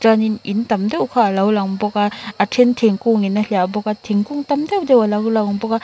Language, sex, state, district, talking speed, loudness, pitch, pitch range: Mizo, female, Mizoram, Aizawl, 265 wpm, -17 LUFS, 215 Hz, 205-230 Hz